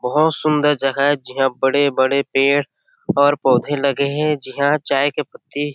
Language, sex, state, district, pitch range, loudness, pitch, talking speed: Chhattisgarhi, male, Chhattisgarh, Sarguja, 135-150 Hz, -17 LUFS, 140 Hz, 175 wpm